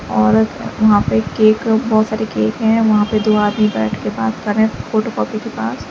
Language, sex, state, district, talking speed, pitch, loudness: Hindi, female, Uttar Pradesh, Lalitpur, 225 wpm, 210 Hz, -16 LUFS